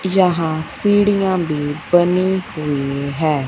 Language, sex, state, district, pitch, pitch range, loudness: Hindi, female, Punjab, Fazilka, 165 Hz, 150-185 Hz, -17 LUFS